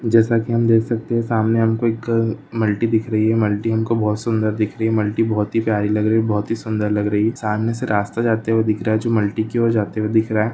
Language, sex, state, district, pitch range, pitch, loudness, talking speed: Hindi, male, West Bengal, Jalpaiguri, 110-115 Hz, 110 Hz, -19 LUFS, 285 wpm